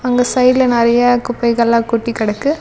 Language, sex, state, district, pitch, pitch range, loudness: Tamil, female, Tamil Nadu, Namakkal, 245 Hz, 235-250 Hz, -14 LUFS